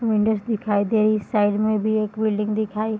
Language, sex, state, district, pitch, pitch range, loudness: Hindi, female, Bihar, Bhagalpur, 215 Hz, 210-220 Hz, -22 LUFS